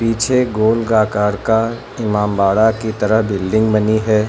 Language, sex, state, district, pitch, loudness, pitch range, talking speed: Hindi, male, Uttar Pradesh, Lucknow, 110 Hz, -16 LUFS, 105-110 Hz, 155 wpm